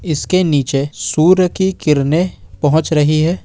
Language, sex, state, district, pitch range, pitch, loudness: Hindi, male, Jharkhand, Ranchi, 145-180 Hz, 155 Hz, -14 LUFS